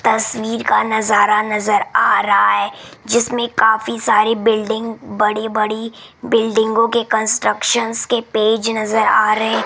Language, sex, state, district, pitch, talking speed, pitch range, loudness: Hindi, female, Rajasthan, Jaipur, 220 Hz, 135 wpm, 215-230 Hz, -16 LUFS